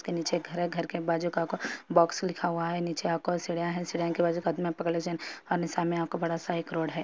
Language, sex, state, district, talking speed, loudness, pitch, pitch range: Hindi, female, Andhra Pradesh, Anantapur, 145 wpm, -30 LUFS, 170 Hz, 170-175 Hz